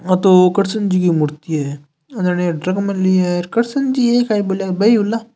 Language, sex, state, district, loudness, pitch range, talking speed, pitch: Hindi, male, Rajasthan, Nagaur, -16 LUFS, 175-215 Hz, 225 wpm, 185 Hz